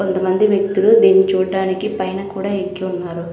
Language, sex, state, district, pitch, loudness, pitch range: Telugu, female, Andhra Pradesh, Krishna, 190 Hz, -16 LUFS, 185-200 Hz